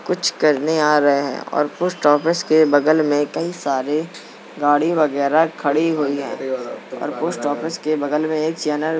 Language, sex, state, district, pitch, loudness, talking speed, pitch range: Hindi, male, Uttar Pradesh, Jalaun, 150 Hz, -19 LUFS, 165 wpm, 145-160 Hz